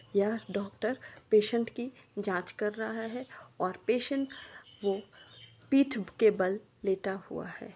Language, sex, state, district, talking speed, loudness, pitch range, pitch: Magahi, female, Bihar, Samastipur, 130 wpm, -32 LUFS, 195-235 Hz, 215 Hz